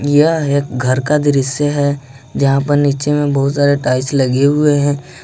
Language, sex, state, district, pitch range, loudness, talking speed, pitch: Hindi, male, Jharkhand, Ranchi, 135-145 Hz, -14 LUFS, 185 wpm, 140 Hz